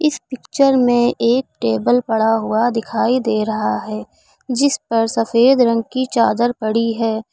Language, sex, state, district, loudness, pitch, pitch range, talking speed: Hindi, female, Uttar Pradesh, Lucknow, -17 LUFS, 230 Hz, 220-250 Hz, 155 wpm